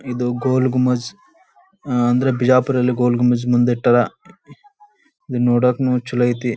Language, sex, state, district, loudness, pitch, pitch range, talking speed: Kannada, male, Karnataka, Bijapur, -17 LUFS, 125 Hz, 120-130 Hz, 120 wpm